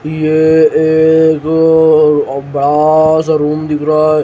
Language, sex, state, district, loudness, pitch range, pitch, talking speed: Hindi, male, Himachal Pradesh, Shimla, -10 LUFS, 150-160 Hz, 155 Hz, 115 wpm